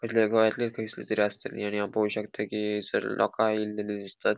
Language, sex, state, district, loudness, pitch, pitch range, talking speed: Konkani, male, Goa, North and South Goa, -28 LUFS, 105 Hz, 105-110 Hz, 180 wpm